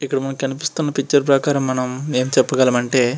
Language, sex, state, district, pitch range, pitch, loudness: Telugu, male, Andhra Pradesh, Srikakulam, 130-140 Hz, 135 Hz, -18 LUFS